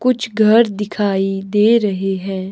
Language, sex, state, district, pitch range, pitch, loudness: Hindi, male, Himachal Pradesh, Shimla, 195-220 Hz, 205 Hz, -16 LUFS